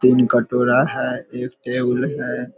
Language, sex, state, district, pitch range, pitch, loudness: Hindi, male, Bihar, Vaishali, 125-130 Hz, 125 Hz, -19 LUFS